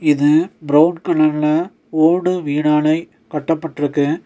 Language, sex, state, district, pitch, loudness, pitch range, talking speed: Tamil, male, Tamil Nadu, Nilgiris, 155 Hz, -16 LUFS, 150-165 Hz, 85 wpm